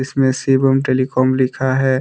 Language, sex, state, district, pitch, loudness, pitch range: Hindi, male, Jharkhand, Deoghar, 130 Hz, -16 LUFS, 130-135 Hz